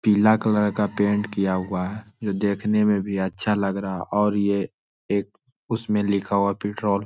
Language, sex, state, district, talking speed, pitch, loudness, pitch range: Hindi, male, Jharkhand, Sahebganj, 195 wpm, 100 Hz, -23 LUFS, 100-105 Hz